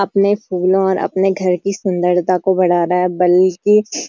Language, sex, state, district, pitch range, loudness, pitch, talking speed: Hindi, female, Uttarakhand, Uttarkashi, 180-200 Hz, -15 LUFS, 185 Hz, 190 wpm